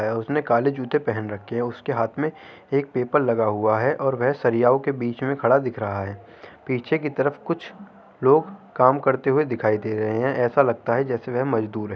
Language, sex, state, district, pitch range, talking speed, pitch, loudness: Hindi, male, Uttar Pradesh, Jyotiba Phule Nagar, 115-140 Hz, 215 wpm, 125 Hz, -22 LUFS